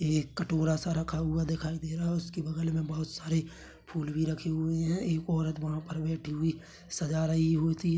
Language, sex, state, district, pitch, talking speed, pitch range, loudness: Hindi, male, Chhattisgarh, Bilaspur, 160 Hz, 220 wpm, 160-165 Hz, -32 LUFS